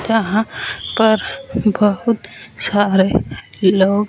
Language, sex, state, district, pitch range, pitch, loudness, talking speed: Hindi, female, Punjab, Fazilka, 190-220 Hz, 205 Hz, -17 LUFS, 75 wpm